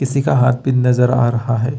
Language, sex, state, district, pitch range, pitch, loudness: Hindi, male, Chhattisgarh, Bastar, 120-135 Hz, 125 Hz, -15 LUFS